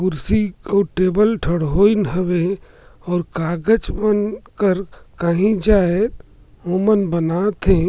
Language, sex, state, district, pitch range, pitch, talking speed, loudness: Surgujia, male, Chhattisgarh, Sarguja, 170-205 Hz, 185 Hz, 105 wpm, -18 LUFS